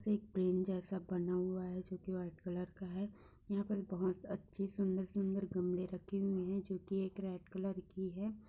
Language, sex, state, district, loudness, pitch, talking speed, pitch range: Hindi, female, Uttar Pradesh, Etah, -41 LUFS, 190 Hz, 210 wpm, 185-195 Hz